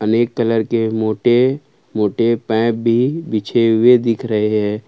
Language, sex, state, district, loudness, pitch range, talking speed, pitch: Hindi, male, Jharkhand, Ranchi, -16 LUFS, 110-120 Hz, 150 wpm, 115 Hz